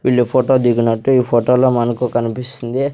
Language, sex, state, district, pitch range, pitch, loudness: Telugu, male, Andhra Pradesh, Sri Satya Sai, 120-130 Hz, 125 Hz, -15 LUFS